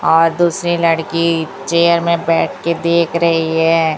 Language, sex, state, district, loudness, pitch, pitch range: Hindi, female, Chhattisgarh, Raipur, -15 LUFS, 170 Hz, 165-170 Hz